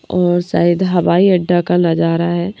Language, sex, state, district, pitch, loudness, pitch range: Hindi, female, Madhya Pradesh, Bhopal, 175 Hz, -14 LUFS, 170-180 Hz